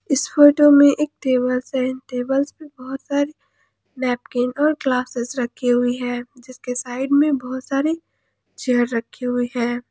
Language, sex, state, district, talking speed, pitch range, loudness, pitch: Hindi, female, Jharkhand, Ranchi, 150 wpm, 245-285 Hz, -20 LUFS, 255 Hz